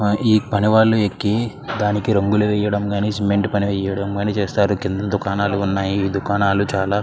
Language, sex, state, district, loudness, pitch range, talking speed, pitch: Telugu, male, Andhra Pradesh, Krishna, -19 LUFS, 100-105 Hz, 145 wpm, 100 Hz